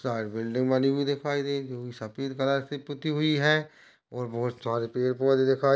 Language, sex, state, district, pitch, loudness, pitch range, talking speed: Hindi, male, Maharashtra, Aurangabad, 135 Hz, -28 LUFS, 125-140 Hz, 200 wpm